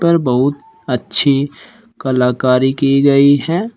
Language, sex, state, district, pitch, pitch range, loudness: Hindi, male, Uttar Pradesh, Shamli, 140 Hz, 130-170 Hz, -14 LUFS